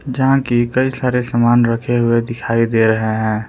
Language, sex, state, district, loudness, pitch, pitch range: Hindi, male, Jharkhand, Palamu, -16 LUFS, 120 Hz, 115-125 Hz